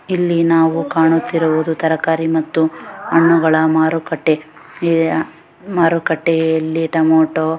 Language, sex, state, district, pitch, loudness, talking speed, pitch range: Kannada, female, Karnataka, Bellary, 160 Hz, -15 LUFS, 95 wpm, 160-165 Hz